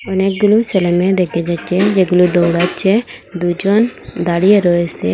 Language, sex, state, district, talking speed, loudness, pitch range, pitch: Bengali, female, Assam, Hailakandi, 115 wpm, -14 LUFS, 175-195 Hz, 180 Hz